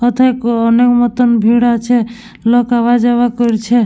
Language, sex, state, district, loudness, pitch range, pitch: Bengali, female, West Bengal, Dakshin Dinajpur, -12 LUFS, 230-245 Hz, 240 Hz